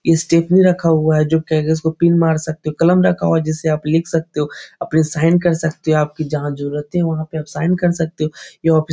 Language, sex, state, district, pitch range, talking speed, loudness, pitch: Hindi, male, Bihar, Jahanabad, 155-165 Hz, 270 wpm, -17 LUFS, 160 Hz